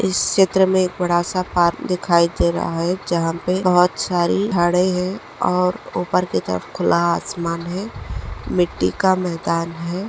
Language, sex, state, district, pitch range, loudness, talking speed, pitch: Hindi, female, Maharashtra, Nagpur, 165-180 Hz, -19 LUFS, 160 wpm, 175 Hz